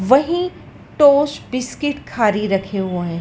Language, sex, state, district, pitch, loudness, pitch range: Hindi, female, Madhya Pradesh, Dhar, 250 Hz, -18 LUFS, 195-290 Hz